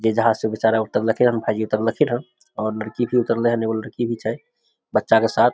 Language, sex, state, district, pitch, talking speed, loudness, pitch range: Maithili, male, Bihar, Samastipur, 115 Hz, 225 wpm, -21 LUFS, 110-120 Hz